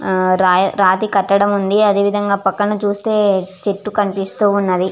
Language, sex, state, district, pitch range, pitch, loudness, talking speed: Telugu, female, Andhra Pradesh, Visakhapatnam, 190-205 Hz, 200 Hz, -15 LUFS, 110 wpm